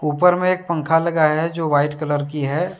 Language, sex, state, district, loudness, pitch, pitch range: Hindi, male, Jharkhand, Deoghar, -19 LUFS, 160 Hz, 150-170 Hz